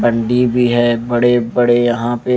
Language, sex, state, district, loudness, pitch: Hindi, male, Maharashtra, Mumbai Suburban, -14 LUFS, 120 Hz